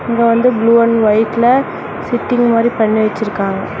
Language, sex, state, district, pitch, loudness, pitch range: Tamil, female, Tamil Nadu, Namakkal, 230 Hz, -13 LUFS, 215-240 Hz